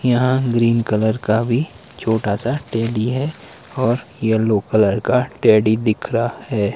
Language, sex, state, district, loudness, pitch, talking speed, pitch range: Hindi, male, Himachal Pradesh, Shimla, -18 LUFS, 115 Hz, 140 wpm, 110-125 Hz